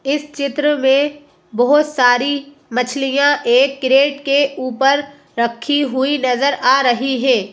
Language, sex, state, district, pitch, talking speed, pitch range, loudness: Hindi, female, Madhya Pradesh, Bhopal, 275 Hz, 125 wpm, 255-285 Hz, -16 LUFS